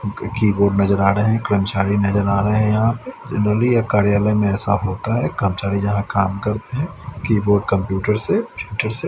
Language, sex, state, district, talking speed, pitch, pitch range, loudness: Hindi, male, Haryana, Rohtak, 185 wpm, 105 Hz, 100-110 Hz, -19 LUFS